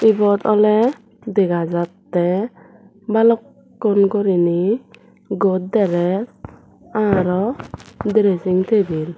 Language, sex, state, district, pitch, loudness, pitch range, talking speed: Chakma, female, Tripura, Dhalai, 205 Hz, -18 LUFS, 185-215 Hz, 65 wpm